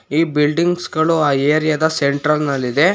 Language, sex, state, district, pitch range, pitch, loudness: Kannada, male, Karnataka, Bangalore, 145-160 Hz, 150 Hz, -16 LUFS